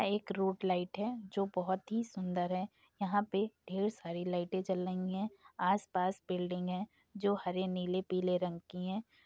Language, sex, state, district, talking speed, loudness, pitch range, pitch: Hindi, female, Uttar Pradesh, Gorakhpur, 180 wpm, -37 LUFS, 180-200 Hz, 190 Hz